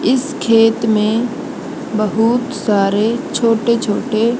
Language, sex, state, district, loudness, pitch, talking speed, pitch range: Hindi, female, Haryana, Jhajjar, -16 LUFS, 230 Hz, 95 wpm, 215-250 Hz